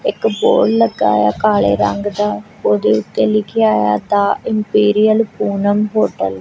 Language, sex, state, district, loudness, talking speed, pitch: Punjabi, female, Punjab, Kapurthala, -15 LUFS, 150 wpm, 205 Hz